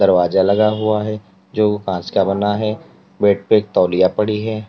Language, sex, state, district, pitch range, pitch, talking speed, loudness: Hindi, male, Uttar Pradesh, Lalitpur, 95-105 Hz, 105 Hz, 190 wpm, -17 LUFS